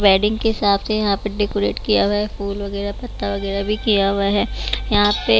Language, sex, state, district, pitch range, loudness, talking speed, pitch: Hindi, female, Bihar, West Champaran, 200-210 Hz, -19 LUFS, 220 wpm, 205 Hz